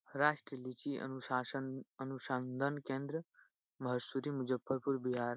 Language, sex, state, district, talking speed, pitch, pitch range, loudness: Hindi, male, Bihar, Jahanabad, 90 wpm, 135 Hz, 130-140 Hz, -40 LUFS